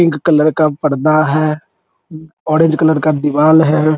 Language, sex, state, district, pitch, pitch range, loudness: Hindi, male, Bihar, Araria, 155 Hz, 155-160 Hz, -13 LUFS